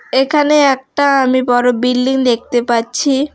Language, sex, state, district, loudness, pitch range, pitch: Bengali, female, West Bengal, Alipurduar, -13 LUFS, 245-280 Hz, 260 Hz